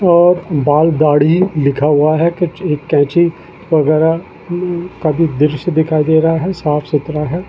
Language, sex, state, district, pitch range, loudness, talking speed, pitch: Hindi, male, Uttarakhand, Tehri Garhwal, 150-175 Hz, -14 LUFS, 150 wpm, 160 Hz